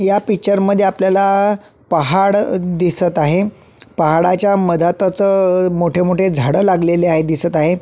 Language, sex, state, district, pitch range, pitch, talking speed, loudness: Marathi, male, Maharashtra, Solapur, 170-195 Hz, 185 Hz, 145 wpm, -15 LUFS